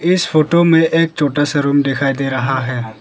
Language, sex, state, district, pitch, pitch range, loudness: Hindi, male, Arunachal Pradesh, Lower Dibang Valley, 145 Hz, 135-165 Hz, -15 LUFS